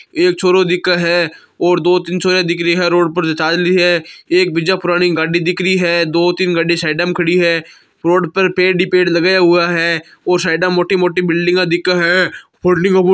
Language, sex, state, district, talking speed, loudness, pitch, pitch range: Marwari, male, Rajasthan, Nagaur, 220 wpm, -13 LUFS, 175 Hz, 170-180 Hz